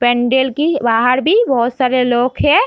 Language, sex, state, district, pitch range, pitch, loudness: Hindi, female, Bihar, Darbhanga, 240-265 Hz, 255 Hz, -14 LUFS